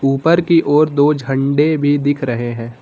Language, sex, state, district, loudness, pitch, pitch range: Hindi, male, Uttar Pradesh, Lucknow, -15 LUFS, 145 Hz, 135-150 Hz